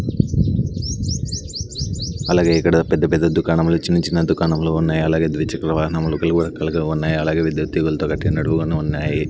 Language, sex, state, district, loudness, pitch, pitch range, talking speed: Telugu, male, Andhra Pradesh, Sri Satya Sai, -19 LUFS, 80 Hz, 80-85 Hz, 115 wpm